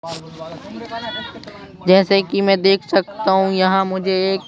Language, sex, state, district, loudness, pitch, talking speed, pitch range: Hindi, male, Madhya Pradesh, Bhopal, -17 LUFS, 190 Hz, 120 wpm, 185-195 Hz